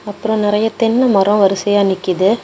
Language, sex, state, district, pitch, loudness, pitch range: Tamil, female, Tamil Nadu, Kanyakumari, 205 Hz, -14 LUFS, 195-220 Hz